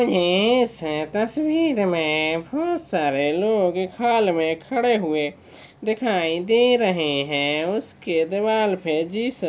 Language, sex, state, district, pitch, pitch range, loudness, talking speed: Hindi, male, Maharashtra, Sindhudurg, 185 Hz, 160-235 Hz, -21 LUFS, 115 wpm